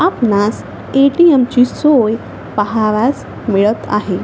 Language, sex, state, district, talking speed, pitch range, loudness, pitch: Marathi, female, Maharashtra, Chandrapur, 100 wpm, 210-275 Hz, -14 LUFS, 230 Hz